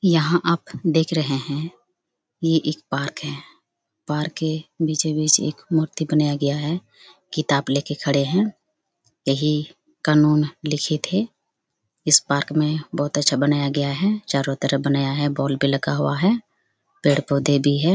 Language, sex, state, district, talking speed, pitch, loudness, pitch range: Hindi, female, Chhattisgarh, Bastar, 160 wpm, 150 Hz, -21 LUFS, 140-160 Hz